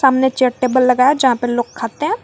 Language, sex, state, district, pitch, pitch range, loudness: Hindi, female, Jharkhand, Garhwa, 255 Hz, 250-270 Hz, -15 LUFS